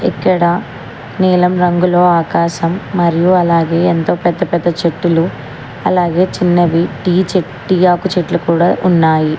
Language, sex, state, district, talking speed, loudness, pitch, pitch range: Telugu, female, Telangana, Hyderabad, 120 wpm, -13 LUFS, 175 Hz, 170-180 Hz